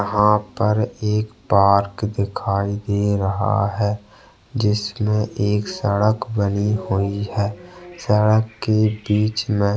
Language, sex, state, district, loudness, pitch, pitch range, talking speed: Hindi, male, Chhattisgarh, Bastar, -20 LUFS, 105 Hz, 100-110 Hz, 110 wpm